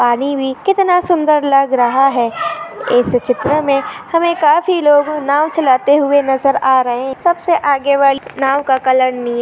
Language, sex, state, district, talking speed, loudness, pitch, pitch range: Hindi, female, Maharashtra, Pune, 170 wpm, -13 LUFS, 275 Hz, 260-305 Hz